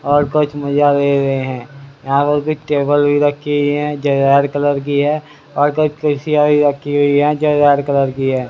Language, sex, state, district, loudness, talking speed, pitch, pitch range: Hindi, male, Haryana, Rohtak, -15 LUFS, 220 wpm, 145 Hz, 140-145 Hz